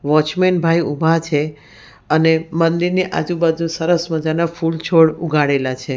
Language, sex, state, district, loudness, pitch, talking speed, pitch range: Gujarati, female, Gujarat, Valsad, -17 LUFS, 160 Hz, 120 wpm, 150-170 Hz